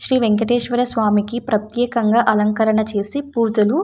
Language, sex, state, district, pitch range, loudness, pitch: Telugu, female, Andhra Pradesh, Anantapur, 215-245 Hz, -18 LUFS, 225 Hz